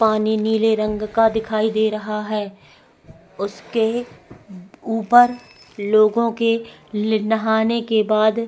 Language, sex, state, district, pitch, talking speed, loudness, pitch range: Hindi, female, Goa, North and South Goa, 220 Hz, 115 wpm, -19 LUFS, 215-225 Hz